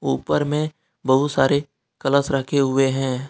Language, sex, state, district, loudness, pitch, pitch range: Hindi, male, Jharkhand, Deoghar, -21 LUFS, 135 Hz, 130-145 Hz